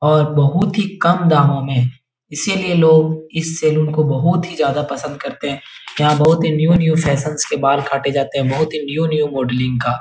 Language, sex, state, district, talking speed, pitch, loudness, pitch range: Hindi, male, Uttar Pradesh, Etah, 205 wpm, 150 Hz, -16 LUFS, 140-160 Hz